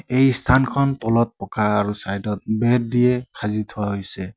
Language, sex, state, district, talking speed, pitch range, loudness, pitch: Assamese, male, Assam, Sonitpur, 150 wpm, 105-125 Hz, -20 LUFS, 110 Hz